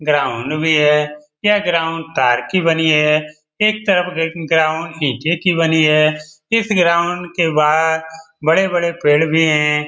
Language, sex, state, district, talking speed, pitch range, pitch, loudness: Hindi, male, Bihar, Lakhisarai, 160 wpm, 150-170 Hz, 160 Hz, -15 LUFS